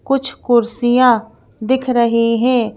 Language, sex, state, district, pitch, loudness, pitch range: Hindi, female, Madhya Pradesh, Bhopal, 240 Hz, -15 LUFS, 230-255 Hz